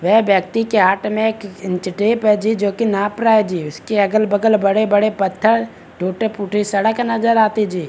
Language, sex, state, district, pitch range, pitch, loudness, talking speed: Hindi, male, Bihar, Begusarai, 195-220 Hz, 210 Hz, -16 LUFS, 190 wpm